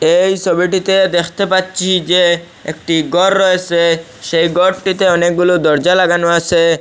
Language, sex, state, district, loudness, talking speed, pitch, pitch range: Bengali, male, Assam, Hailakandi, -13 LUFS, 125 wpm, 175 Hz, 170-185 Hz